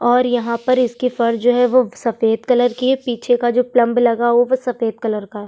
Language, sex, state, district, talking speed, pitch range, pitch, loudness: Hindi, female, Chhattisgarh, Sukma, 275 wpm, 230-250 Hz, 240 Hz, -17 LUFS